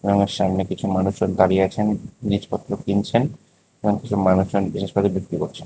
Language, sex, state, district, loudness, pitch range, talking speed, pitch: Bengali, male, Tripura, West Tripura, -21 LUFS, 95-105 Hz, 150 wpm, 100 Hz